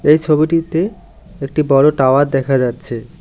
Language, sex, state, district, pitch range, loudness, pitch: Bengali, male, West Bengal, Alipurduar, 135-165 Hz, -14 LUFS, 150 Hz